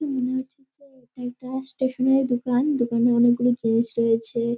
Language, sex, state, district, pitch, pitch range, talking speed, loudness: Bengali, male, West Bengal, Dakshin Dinajpur, 250 Hz, 240-265 Hz, 155 wpm, -22 LUFS